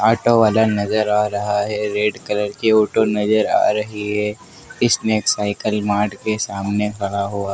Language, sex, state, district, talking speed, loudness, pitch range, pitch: Hindi, male, Madhya Pradesh, Dhar, 185 wpm, -18 LUFS, 105-110 Hz, 105 Hz